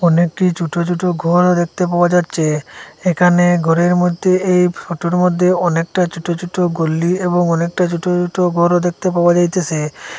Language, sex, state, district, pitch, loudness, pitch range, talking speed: Bengali, male, Assam, Hailakandi, 175 Hz, -15 LUFS, 170-180 Hz, 145 wpm